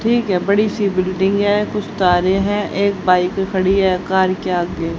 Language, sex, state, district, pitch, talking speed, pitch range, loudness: Hindi, female, Haryana, Rohtak, 190 Hz, 190 wpm, 185-205 Hz, -17 LUFS